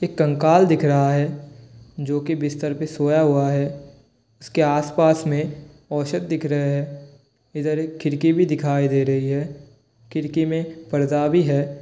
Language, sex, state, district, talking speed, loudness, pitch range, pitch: Hindi, male, Bihar, Kishanganj, 165 wpm, -21 LUFS, 140-155 Hz, 145 Hz